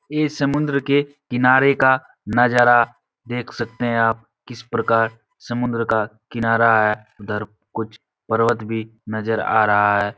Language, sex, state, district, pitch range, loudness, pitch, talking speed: Hindi, male, Uttar Pradesh, Etah, 110-125 Hz, -19 LUFS, 115 Hz, 140 wpm